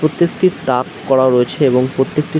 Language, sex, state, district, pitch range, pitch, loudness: Bengali, male, West Bengal, Jhargram, 130-155 Hz, 135 Hz, -15 LUFS